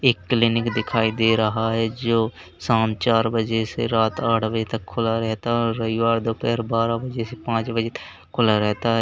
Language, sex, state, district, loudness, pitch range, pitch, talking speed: Hindi, male, Uttar Pradesh, Lalitpur, -22 LUFS, 110-115 Hz, 115 Hz, 200 wpm